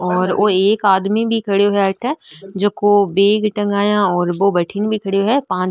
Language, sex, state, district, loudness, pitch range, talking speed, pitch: Marwari, female, Rajasthan, Nagaur, -16 LUFS, 190-210 Hz, 170 wpm, 200 Hz